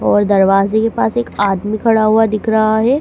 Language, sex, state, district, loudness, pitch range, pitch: Hindi, female, Madhya Pradesh, Dhar, -14 LUFS, 200-225 Hz, 215 Hz